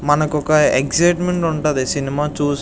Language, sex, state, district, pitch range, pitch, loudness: Telugu, male, Andhra Pradesh, Visakhapatnam, 145-155 Hz, 150 Hz, -17 LUFS